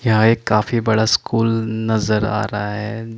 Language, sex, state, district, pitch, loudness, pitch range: Hindi, male, Chandigarh, Chandigarh, 110 Hz, -18 LUFS, 105-115 Hz